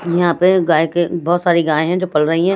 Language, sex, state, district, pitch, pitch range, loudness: Hindi, female, Delhi, New Delhi, 175 Hz, 165-180 Hz, -15 LUFS